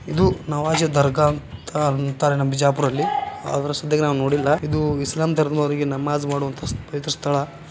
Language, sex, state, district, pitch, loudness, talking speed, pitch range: Kannada, male, Karnataka, Bijapur, 145 Hz, -21 LUFS, 140 wpm, 140-150 Hz